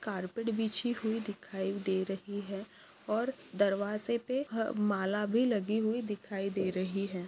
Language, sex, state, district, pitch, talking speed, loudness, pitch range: Hindi, female, Maharashtra, Nagpur, 205 Hz, 155 wpm, -34 LUFS, 195-225 Hz